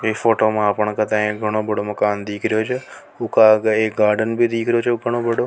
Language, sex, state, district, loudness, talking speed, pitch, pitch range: Rajasthani, male, Rajasthan, Nagaur, -18 LUFS, 220 wpm, 110 Hz, 105-115 Hz